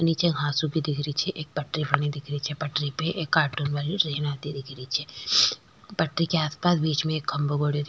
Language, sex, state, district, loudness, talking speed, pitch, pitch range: Rajasthani, female, Rajasthan, Nagaur, -26 LUFS, 250 wpm, 150 Hz, 145-160 Hz